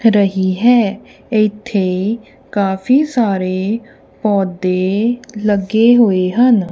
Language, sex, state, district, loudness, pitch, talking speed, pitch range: Punjabi, female, Punjab, Kapurthala, -15 LUFS, 210 Hz, 80 wpm, 190-235 Hz